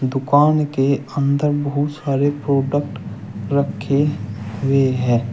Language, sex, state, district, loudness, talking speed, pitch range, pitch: Hindi, male, Uttar Pradesh, Shamli, -19 LUFS, 100 wpm, 125-145 Hz, 140 Hz